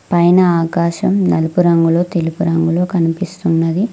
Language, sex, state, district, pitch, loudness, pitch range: Telugu, female, Telangana, Mahabubabad, 170 Hz, -14 LUFS, 165-180 Hz